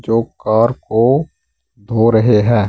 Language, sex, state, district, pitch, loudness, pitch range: Hindi, male, Uttar Pradesh, Saharanpur, 115 Hz, -14 LUFS, 110-120 Hz